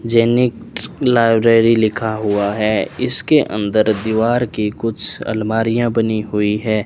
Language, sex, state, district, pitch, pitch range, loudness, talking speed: Hindi, male, Rajasthan, Bikaner, 110 Hz, 105-115 Hz, -16 LUFS, 130 wpm